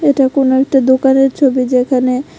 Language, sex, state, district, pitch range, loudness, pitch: Bengali, female, Tripura, West Tripura, 255-270 Hz, -12 LUFS, 265 Hz